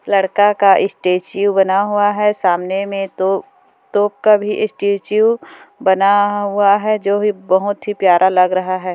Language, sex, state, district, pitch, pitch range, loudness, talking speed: Hindi, female, Chhattisgarh, Korba, 200 Hz, 190-210 Hz, -15 LUFS, 145 wpm